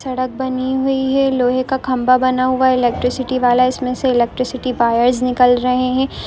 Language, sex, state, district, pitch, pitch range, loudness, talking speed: Hindi, female, Uttar Pradesh, Ghazipur, 255 Hz, 250-260 Hz, -16 LUFS, 190 wpm